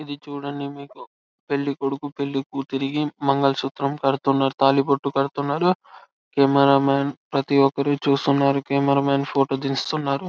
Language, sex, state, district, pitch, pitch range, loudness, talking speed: Telugu, male, Telangana, Karimnagar, 140 Hz, 135-140 Hz, -22 LUFS, 130 wpm